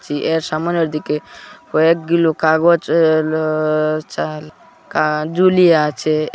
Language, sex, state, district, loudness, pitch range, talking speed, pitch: Bengali, male, Assam, Hailakandi, -16 LUFS, 155-165 Hz, 115 wpm, 155 Hz